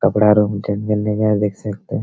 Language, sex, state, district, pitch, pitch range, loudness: Hindi, male, Bihar, Araria, 105 Hz, 100-105 Hz, -17 LUFS